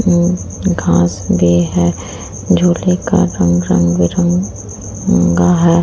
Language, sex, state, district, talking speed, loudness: Hindi, female, Uttar Pradesh, Muzaffarnagar, 125 wpm, -13 LUFS